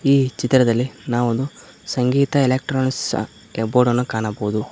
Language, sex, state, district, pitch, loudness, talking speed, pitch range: Kannada, male, Karnataka, Koppal, 125 Hz, -20 LUFS, 100 wpm, 110-135 Hz